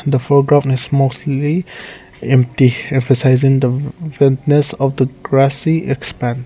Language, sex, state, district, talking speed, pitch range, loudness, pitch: English, male, Nagaland, Kohima, 110 wpm, 130-145 Hz, -15 LUFS, 135 Hz